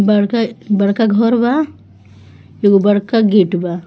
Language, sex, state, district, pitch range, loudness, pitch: Bhojpuri, female, Bihar, Muzaffarpur, 175-225 Hz, -14 LUFS, 205 Hz